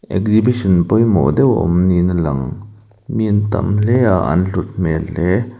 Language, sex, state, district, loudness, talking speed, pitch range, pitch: Mizo, male, Mizoram, Aizawl, -15 LUFS, 180 wpm, 90-110 Hz, 100 Hz